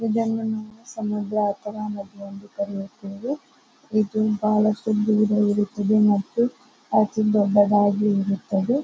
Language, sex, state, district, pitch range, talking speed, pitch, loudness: Kannada, female, Karnataka, Bijapur, 205-220 Hz, 110 wpm, 210 Hz, -22 LUFS